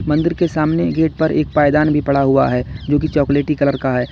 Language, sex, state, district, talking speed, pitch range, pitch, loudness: Hindi, male, Uttar Pradesh, Lalitpur, 245 wpm, 140-155 Hz, 150 Hz, -16 LUFS